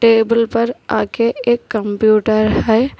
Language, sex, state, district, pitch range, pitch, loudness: Hindi, female, Telangana, Hyderabad, 215-235 Hz, 225 Hz, -15 LUFS